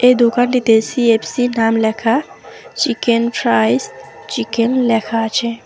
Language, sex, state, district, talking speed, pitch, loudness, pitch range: Bengali, female, West Bengal, Alipurduar, 105 wpm, 230 Hz, -15 LUFS, 225-245 Hz